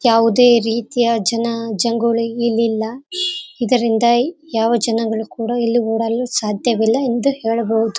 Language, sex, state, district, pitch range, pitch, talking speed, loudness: Kannada, female, Karnataka, Raichur, 225-240 Hz, 230 Hz, 90 wpm, -17 LUFS